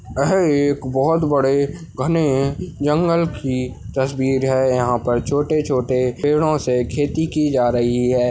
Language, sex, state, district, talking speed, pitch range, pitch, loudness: Hindi, male, Maharashtra, Nagpur, 130 wpm, 125-150 Hz, 135 Hz, -19 LUFS